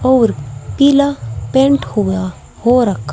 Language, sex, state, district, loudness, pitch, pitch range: Hindi, female, Uttar Pradesh, Saharanpur, -14 LUFS, 245 Hz, 195-280 Hz